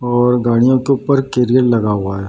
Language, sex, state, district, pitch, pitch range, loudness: Hindi, male, Bihar, Samastipur, 125 Hz, 115-130 Hz, -14 LUFS